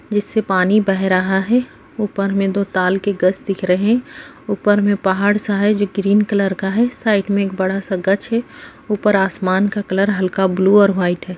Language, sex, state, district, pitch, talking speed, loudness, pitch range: Hindi, female, Bihar, Jamui, 200 Hz, 200 wpm, -17 LUFS, 190-210 Hz